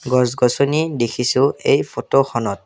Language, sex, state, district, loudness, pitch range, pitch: Assamese, male, Assam, Kamrup Metropolitan, -18 LUFS, 120-140 Hz, 125 Hz